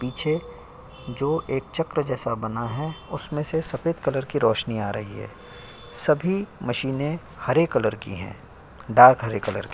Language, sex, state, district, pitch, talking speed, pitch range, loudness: Hindi, male, Uttar Pradesh, Jyotiba Phule Nagar, 125 Hz, 160 wpm, 110-155 Hz, -24 LUFS